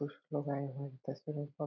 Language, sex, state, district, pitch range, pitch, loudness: Hindi, male, Chhattisgarh, Korba, 140-150 Hz, 145 Hz, -40 LUFS